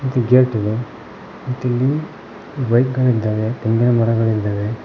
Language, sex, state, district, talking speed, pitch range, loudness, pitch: Kannada, male, Karnataka, Koppal, 85 wpm, 110-125 Hz, -18 LUFS, 120 Hz